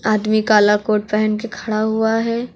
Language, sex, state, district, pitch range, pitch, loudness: Hindi, female, Uttar Pradesh, Lucknow, 215-225 Hz, 215 Hz, -17 LUFS